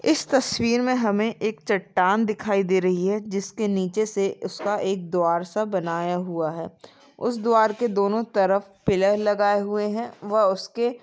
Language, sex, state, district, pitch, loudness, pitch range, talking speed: Hindi, female, Maharashtra, Aurangabad, 205 Hz, -23 LUFS, 190-220 Hz, 175 wpm